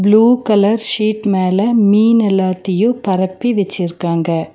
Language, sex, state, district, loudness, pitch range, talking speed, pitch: Tamil, female, Tamil Nadu, Nilgiris, -14 LUFS, 185-220 Hz, 105 wpm, 200 Hz